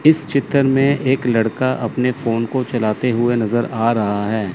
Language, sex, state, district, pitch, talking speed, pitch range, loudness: Hindi, male, Chandigarh, Chandigarh, 120 Hz, 185 wpm, 115-130 Hz, -18 LUFS